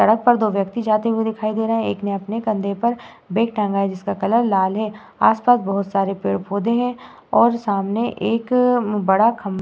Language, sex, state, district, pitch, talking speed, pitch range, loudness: Hindi, female, Uttar Pradesh, Muzaffarnagar, 215 Hz, 220 wpm, 200-230 Hz, -19 LUFS